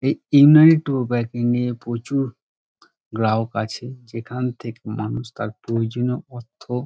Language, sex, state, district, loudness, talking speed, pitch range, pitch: Bengali, male, West Bengal, Dakshin Dinajpur, -20 LUFS, 105 wpm, 115-125 Hz, 120 Hz